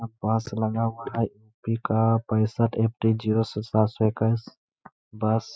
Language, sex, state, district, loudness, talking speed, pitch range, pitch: Hindi, male, Bihar, Gaya, -25 LUFS, 185 wpm, 110-115 Hz, 110 Hz